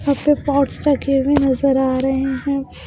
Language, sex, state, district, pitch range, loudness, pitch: Hindi, female, Bihar, Patna, 265-280 Hz, -17 LUFS, 275 Hz